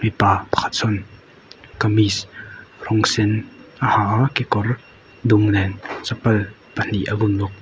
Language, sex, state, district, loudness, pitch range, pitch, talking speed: Mizo, male, Mizoram, Aizawl, -20 LUFS, 100-110 Hz, 105 Hz, 135 wpm